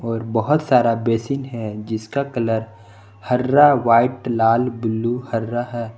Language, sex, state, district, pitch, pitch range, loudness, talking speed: Hindi, male, Jharkhand, Palamu, 115 Hz, 115-125 Hz, -19 LUFS, 130 wpm